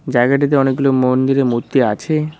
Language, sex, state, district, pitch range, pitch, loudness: Bengali, male, West Bengal, Cooch Behar, 130-140 Hz, 135 Hz, -15 LUFS